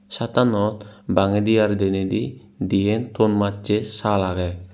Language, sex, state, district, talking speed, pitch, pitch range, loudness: Chakma, male, Tripura, Unakoti, 125 wpm, 105 Hz, 95-110 Hz, -21 LUFS